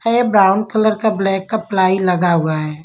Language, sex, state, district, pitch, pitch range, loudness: Hindi, female, Punjab, Kapurthala, 195 Hz, 180-220 Hz, -15 LUFS